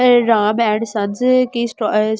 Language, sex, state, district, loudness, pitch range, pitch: Hindi, female, Delhi, New Delhi, -16 LUFS, 215-240 Hz, 225 Hz